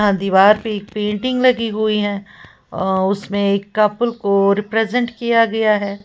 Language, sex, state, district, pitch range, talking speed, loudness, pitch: Hindi, female, Uttar Pradesh, Lalitpur, 200-225 Hz, 160 wpm, -17 LUFS, 210 Hz